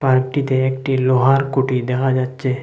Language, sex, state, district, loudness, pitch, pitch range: Bengali, male, Assam, Hailakandi, -18 LUFS, 130 Hz, 130-135 Hz